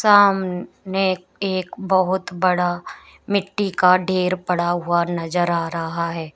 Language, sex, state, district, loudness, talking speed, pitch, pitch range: Hindi, female, Uttar Pradesh, Shamli, -20 LUFS, 120 wpm, 180 Hz, 175-190 Hz